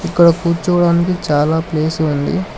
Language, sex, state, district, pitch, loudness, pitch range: Telugu, male, Telangana, Hyderabad, 170 Hz, -15 LUFS, 155-175 Hz